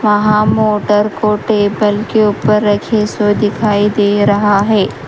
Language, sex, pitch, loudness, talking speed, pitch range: Hindi, female, 210 Hz, -12 LUFS, 140 wpm, 205-215 Hz